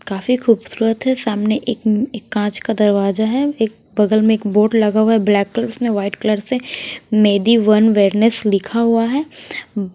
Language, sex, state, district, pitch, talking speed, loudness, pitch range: Hindi, female, Haryana, Rohtak, 220 Hz, 180 wpm, -16 LUFS, 210-230 Hz